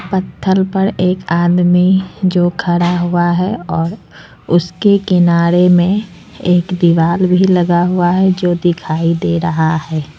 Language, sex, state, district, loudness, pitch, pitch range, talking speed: Hindi, female, Jharkhand, Ranchi, -13 LUFS, 175 Hz, 175-185 Hz, 135 wpm